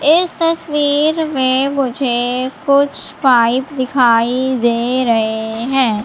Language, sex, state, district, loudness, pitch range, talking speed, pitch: Hindi, female, Madhya Pradesh, Katni, -15 LUFS, 240-285 Hz, 100 wpm, 260 Hz